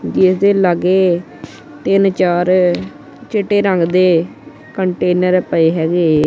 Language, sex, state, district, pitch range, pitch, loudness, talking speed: Punjabi, male, Punjab, Kapurthala, 165-190 Hz, 180 Hz, -14 LUFS, 95 wpm